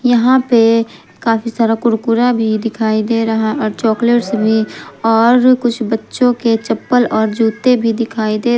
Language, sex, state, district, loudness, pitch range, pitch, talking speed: Hindi, female, Jharkhand, Garhwa, -14 LUFS, 220-240 Hz, 230 Hz, 160 wpm